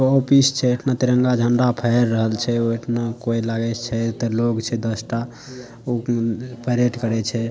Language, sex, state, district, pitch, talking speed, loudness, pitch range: Maithili, male, Bihar, Saharsa, 120 Hz, 135 wpm, -20 LUFS, 115-125 Hz